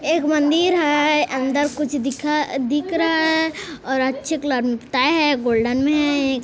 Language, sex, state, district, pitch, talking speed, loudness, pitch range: Hindi, female, Chhattisgarh, Kabirdham, 290 Hz, 175 wpm, -19 LUFS, 265-315 Hz